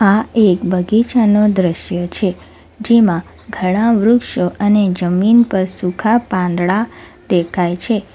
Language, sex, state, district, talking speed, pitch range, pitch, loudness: Gujarati, female, Gujarat, Valsad, 110 wpm, 180-220 Hz, 195 Hz, -15 LUFS